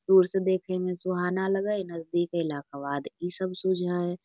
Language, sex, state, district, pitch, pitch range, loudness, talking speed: Magahi, female, Bihar, Lakhisarai, 180 Hz, 175-190 Hz, -28 LUFS, 210 wpm